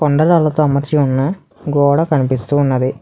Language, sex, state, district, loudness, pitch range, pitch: Telugu, male, Telangana, Hyderabad, -15 LUFS, 135-155 Hz, 145 Hz